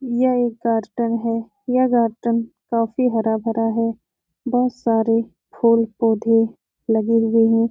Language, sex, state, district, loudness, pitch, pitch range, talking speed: Hindi, female, Uttar Pradesh, Etah, -20 LUFS, 230 Hz, 225-235 Hz, 125 wpm